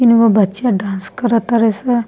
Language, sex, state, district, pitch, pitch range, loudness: Bhojpuri, female, Bihar, East Champaran, 230 Hz, 205-240 Hz, -15 LUFS